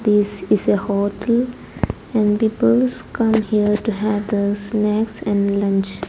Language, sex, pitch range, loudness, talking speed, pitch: English, female, 200-215 Hz, -19 LUFS, 140 wpm, 210 Hz